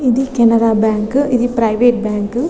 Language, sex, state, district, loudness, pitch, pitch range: Telugu, female, Telangana, Nalgonda, -14 LUFS, 235 Hz, 220-250 Hz